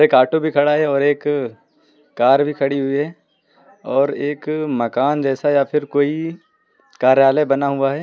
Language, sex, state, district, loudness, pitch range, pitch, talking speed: Hindi, male, Uttar Pradesh, Lucknow, -17 LUFS, 135-150 Hz, 145 Hz, 165 wpm